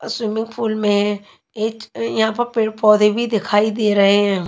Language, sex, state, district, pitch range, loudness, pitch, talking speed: Hindi, female, Maharashtra, Mumbai Suburban, 205-225 Hz, -18 LUFS, 215 Hz, 200 wpm